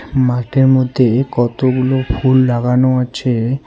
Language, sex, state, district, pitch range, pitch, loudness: Bengali, male, West Bengal, Alipurduar, 125-130 Hz, 130 Hz, -14 LUFS